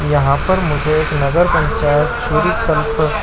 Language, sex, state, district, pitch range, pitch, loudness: Hindi, male, Chhattisgarh, Korba, 145-160 Hz, 150 Hz, -15 LUFS